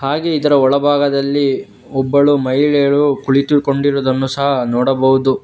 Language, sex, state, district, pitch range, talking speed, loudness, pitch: Kannada, male, Karnataka, Bangalore, 135-145 Hz, 90 wpm, -14 LUFS, 140 Hz